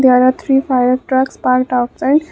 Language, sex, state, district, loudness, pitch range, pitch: English, female, Assam, Kamrup Metropolitan, -14 LUFS, 255-270 Hz, 255 Hz